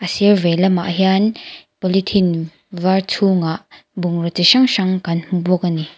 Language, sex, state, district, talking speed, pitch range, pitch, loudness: Mizo, female, Mizoram, Aizawl, 160 wpm, 175-195 Hz, 185 Hz, -16 LUFS